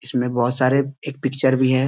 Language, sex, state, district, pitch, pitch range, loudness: Hindi, male, Bihar, East Champaran, 130 Hz, 125-135 Hz, -20 LUFS